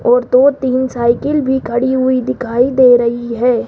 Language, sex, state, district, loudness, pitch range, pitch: Hindi, female, Rajasthan, Jaipur, -13 LUFS, 240-260 Hz, 250 Hz